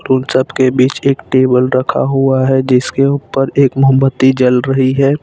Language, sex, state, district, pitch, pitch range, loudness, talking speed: Hindi, male, Jharkhand, Ranchi, 130 Hz, 130-135 Hz, -12 LUFS, 185 wpm